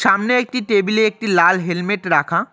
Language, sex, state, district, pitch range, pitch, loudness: Bengali, male, West Bengal, Cooch Behar, 180-220 Hz, 200 Hz, -16 LUFS